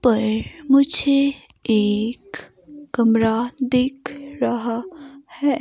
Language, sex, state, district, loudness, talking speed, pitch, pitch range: Hindi, female, Himachal Pradesh, Shimla, -19 LUFS, 75 wpm, 260 Hz, 230-280 Hz